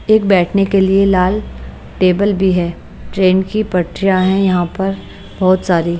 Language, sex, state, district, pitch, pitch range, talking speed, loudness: Hindi, female, Bihar, West Champaran, 190 Hz, 185-195 Hz, 160 wpm, -14 LUFS